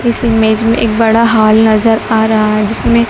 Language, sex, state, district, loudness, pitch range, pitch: Hindi, female, Madhya Pradesh, Dhar, -10 LUFS, 220-230 Hz, 225 Hz